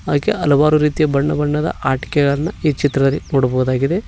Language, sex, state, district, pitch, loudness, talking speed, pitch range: Kannada, male, Karnataka, Koppal, 145 Hz, -17 LUFS, 130 wpm, 135-150 Hz